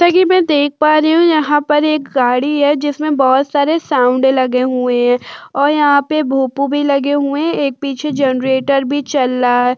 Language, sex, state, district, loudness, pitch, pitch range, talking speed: Hindi, female, Uttar Pradesh, Budaun, -14 LUFS, 285 Hz, 265-300 Hz, 200 wpm